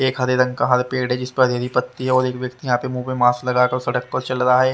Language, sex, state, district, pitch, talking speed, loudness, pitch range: Hindi, male, Haryana, Rohtak, 125 Hz, 330 wpm, -19 LUFS, 125-130 Hz